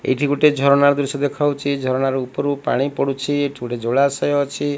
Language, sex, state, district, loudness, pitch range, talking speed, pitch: Odia, male, Odisha, Malkangiri, -19 LUFS, 135-145 Hz, 190 wpm, 140 Hz